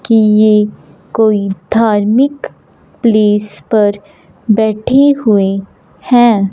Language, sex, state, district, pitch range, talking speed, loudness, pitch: Hindi, female, Punjab, Fazilka, 205-225 Hz, 85 wpm, -11 LUFS, 215 Hz